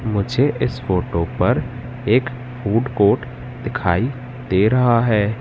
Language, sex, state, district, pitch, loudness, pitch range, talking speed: Hindi, male, Madhya Pradesh, Katni, 120 Hz, -19 LUFS, 105-125 Hz, 120 wpm